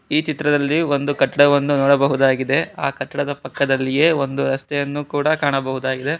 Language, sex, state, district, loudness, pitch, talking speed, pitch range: Kannada, male, Karnataka, Bangalore, -19 LUFS, 140 Hz, 115 wpm, 135-145 Hz